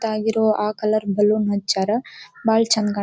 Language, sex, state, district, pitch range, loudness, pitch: Kannada, female, Karnataka, Dharwad, 205-220 Hz, -20 LUFS, 215 Hz